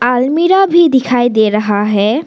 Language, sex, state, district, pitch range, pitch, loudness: Hindi, female, Arunachal Pradesh, Lower Dibang Valley, 215-320 Hz, 245 Hz, -11 LUFS